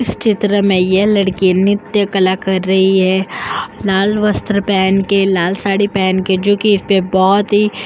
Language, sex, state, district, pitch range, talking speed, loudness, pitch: Hindi, female, Uttar Pradesh, Jyotiba Phule Nagar, 190-205 Hz, 190 wpm, -14 LUFS, 195 Hz